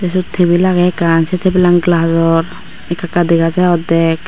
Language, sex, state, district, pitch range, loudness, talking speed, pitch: Chakma, female, Tripura, West Tripura, 165-180 Hz, -12 LUFS, 155 wpm, 175 Hz